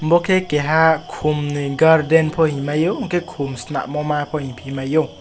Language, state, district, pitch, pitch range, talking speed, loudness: Kokborok, Tripura, West Tripura, 155 Hz, 145-160 Hz, 195 wpm, -18 LUFS